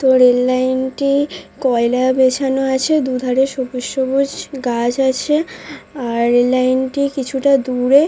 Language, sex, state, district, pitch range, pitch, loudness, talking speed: Bengali, female, West Bengal, Dakshin Dinajpur, 255-275 Hz, 260 Hz, -16 LUFS, 135 wpm